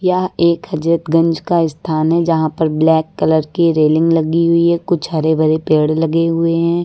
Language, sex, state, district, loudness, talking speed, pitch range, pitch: Hindi, female, Uttar Pradesh, Lucknow, -15 LUFS, 195 wpm, 155-170 Hz, 165 Hz